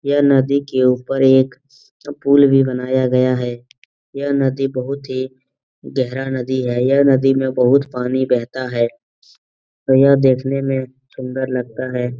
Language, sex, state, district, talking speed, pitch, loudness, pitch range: Hindi, male, Bihar, Lakhisarai, 150 wpm, 130 Hz, -17 LUFS, 125-135 Hz